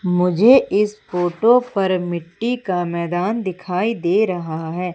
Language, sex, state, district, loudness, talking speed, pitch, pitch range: Hindi, female, Madhya Pradesh, Umaria, -19 LUFS, 135 wpm, 180 Hz, 175-220 Hz